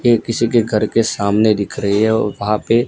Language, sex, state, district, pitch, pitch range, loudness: Hindi, male, Gujarat, Gandhinagar, 110 Hz, 105-115 Hz, -16 LUFS